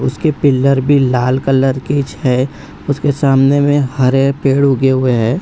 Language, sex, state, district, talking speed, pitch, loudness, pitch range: Hindi, male, Bihar, Jamui, 165 wpm, 135 Hz, -13 LUFS, 130-140 Hz